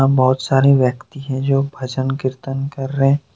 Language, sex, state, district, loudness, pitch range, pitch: Hindi, male, Jharkhand, Deoghar, -18 LUFS, 130-135 Hz, 135 Hz